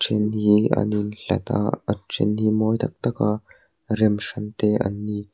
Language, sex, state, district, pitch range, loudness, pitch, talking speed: Mizo, male, Mizoram, Aizawl, 105-110 Hz, -23 LUFS, 105 Hz, 190 wpm